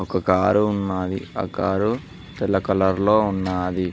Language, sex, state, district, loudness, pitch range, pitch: Telugu, male, Telangana, Mahabubabad, -21 LUFS, 95-105 Hz, 95 Hz